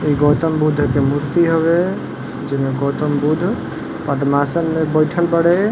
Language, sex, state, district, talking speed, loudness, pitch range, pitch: Bhojpuri, male, Uttar Pradesh, Varanasi, 145 wpm, -17 LUFS, 145-170 Hz, 155 Hz